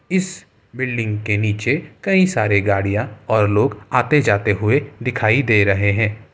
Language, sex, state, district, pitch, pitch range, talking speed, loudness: Hindi, male, Bihar, Gaya, 110 Hz, 105-135 Hz, 150 wpm, -18 LUFS